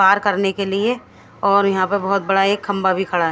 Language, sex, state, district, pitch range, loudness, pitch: Hindi, female, Odisha, Khordha, 190-200 Hz, -18 LUFS, 195 Hz